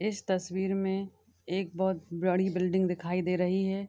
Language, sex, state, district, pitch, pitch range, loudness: Hindi, female, Chhattisgarh, Bilaspur, 190 Hz, 180-190 Hz, -31 LUFS